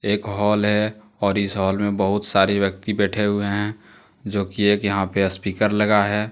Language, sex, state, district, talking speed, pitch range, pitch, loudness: Hindi, male, Jharkhand, Deoghar, 190 wpm, 100-105 Hz, 100 Hz, -21 LUFS